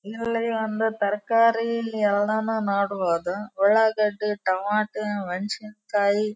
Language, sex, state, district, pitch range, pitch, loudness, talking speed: Kannada, female, Karnataka, Dharwad, 200-220 Hz, 210 Hz, -24 LUFS, 95 wpm